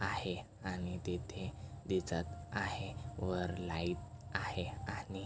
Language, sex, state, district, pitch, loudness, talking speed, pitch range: Marathi, male, Maharashtra, Chandrapur, 95 Hz, -41 LUFS, 115 wpm, 90-105 Hz